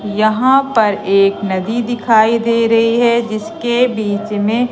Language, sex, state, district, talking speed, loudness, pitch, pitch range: Hindi, female, Madhya Pradesh, Katni, 140 wpm, -14 LUFS, 225 Hz, 210-240 Hz